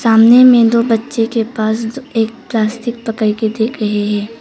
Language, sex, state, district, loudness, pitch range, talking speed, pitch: Hindi, female, Arunachal Pradesh, Papum Pare, -13 LUFS, 220-235 Hz, 175 wpm, 225 Hz